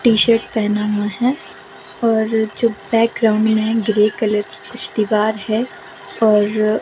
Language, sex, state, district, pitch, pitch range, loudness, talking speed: Hindi, female, Himachal Pradesh, Shimla, 220 Hz, 215-230 Hz, -17 LUFS, 160 wpm